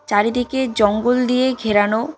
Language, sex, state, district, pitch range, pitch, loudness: Bengali, female, West Bengal, Cooch Behar, 210-250 Hz, 240 Hz, -18 LUFS